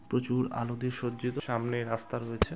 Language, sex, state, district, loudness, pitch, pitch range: Bengali, male, West Bengal, Kolkata, -33 LUFS, 120 Hz, 115-125 Hz